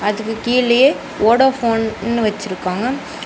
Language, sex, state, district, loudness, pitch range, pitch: Tamil, female, Tamil Nadu, Namakkal, -16 LUFS, 215-250 Hz, 230 Hz